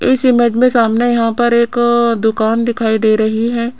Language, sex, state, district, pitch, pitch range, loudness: Hindi, female, Rajasthan, Jaipur, 235 Hz, 225-240 Hz, -13 LUFS